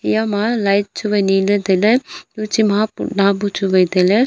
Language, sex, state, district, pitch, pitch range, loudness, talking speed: Wancho, female, Arunachal Pradesh, Longding, 205 Hz, 195-215 Hz, -16 LUFS, 155 wpm